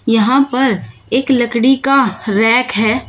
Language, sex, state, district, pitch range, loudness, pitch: Hindi, female, Uttar Pradesh, Shamli, 220-265 Hz, -13 LUFS, 245 Hz